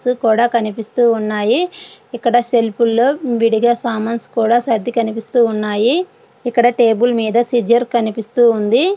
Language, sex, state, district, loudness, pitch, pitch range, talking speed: Telugu, female, Andhra Pradesh, Srikakulam, -15 LUFS, 235 Hz, 225-245 Hz, 120 wpm